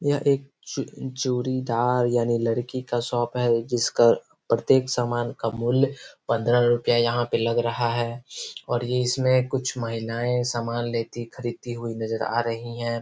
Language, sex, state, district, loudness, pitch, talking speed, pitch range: Hindi, male, Bihar, Gopalganj, -24 LUFS, 120 Hz, 155 wpm, 115-125 Hz